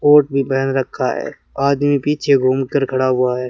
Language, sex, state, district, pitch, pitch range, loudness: Hindi, male, Rajasthan, Bikaner, 135 Hz, 130-140 Hz, -17 LUFS